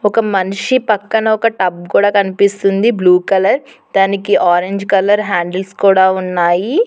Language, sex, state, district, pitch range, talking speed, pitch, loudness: Telugu, female, Telangana, Hyderabad, 185-210 Hz, 130 wpm, 195 Hz, -13 LUFS